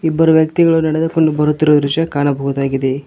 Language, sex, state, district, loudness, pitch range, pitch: Kannada, male, Karnataka, Koppal, -14 LUFS, 140-160 Hz, 155 Hz